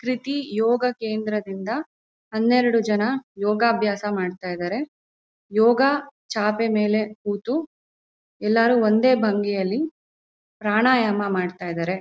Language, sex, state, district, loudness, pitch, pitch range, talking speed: Kannada, female, Karnataka, Mysore, -22 LUFS, 220 Hz, 205-250 Hz, 90 wpm